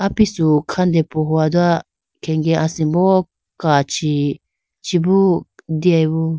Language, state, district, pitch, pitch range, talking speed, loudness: Idu Mishmi, Arunachal Pradesh, Lower Dibang Valley, 160 Hz, 155-180 Hz, 75 wpm, -17 LUFS